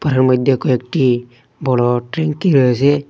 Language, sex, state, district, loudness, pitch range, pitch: Bengali, male, Assam, Hailakandi, -15 LUFS, 125-145 Hz, 130 Hz